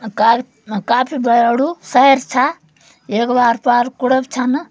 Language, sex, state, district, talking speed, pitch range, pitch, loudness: Garhwali, female, Uttarakhand, Uttarkashi, 140 wpm, 235-265 Hz, 250 Hz, -15 LUFS